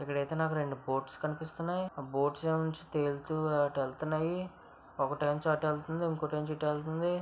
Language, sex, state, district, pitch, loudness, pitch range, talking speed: Telugu, female, Andhra Pradesh, Visakhapatnam, 155 Hz, -34 LUFS, 145-160 Hz, 165 wpm